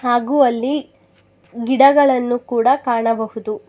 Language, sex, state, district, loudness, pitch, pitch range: Kannada, female, Karnataka, Bangalore, -16 LUFS, 245 Hz, 230-270 Hz